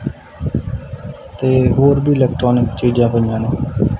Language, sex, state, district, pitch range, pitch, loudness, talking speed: Punjabi, male, Punjab, Kapurthala, 115-135 Hz, 125 Hz, -16 LUFS, 105 wpm